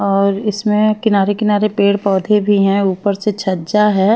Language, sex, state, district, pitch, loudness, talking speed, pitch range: Hindi, female, Chhattisgarh, Raipur, 205 Hz, -15 LUFS, 175 wpm, 195-210 Hz